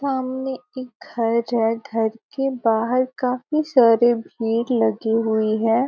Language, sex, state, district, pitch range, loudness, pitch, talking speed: Hindi, female, Bihar, Gopalganj, 225-260 Hz, -21 LUFS, 235 Hz, 135 wpm